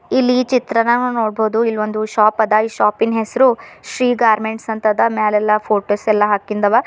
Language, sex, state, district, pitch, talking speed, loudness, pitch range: Kannada, female, Karnataka, Bidar, 220 Hz, 150 wpm, -16 LUFS, 215-230 Hz